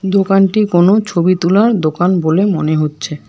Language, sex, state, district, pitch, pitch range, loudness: Bengali, female, West Bengal, Alipurduar, 185 Hz, 160-195 Hz, -13 LUFS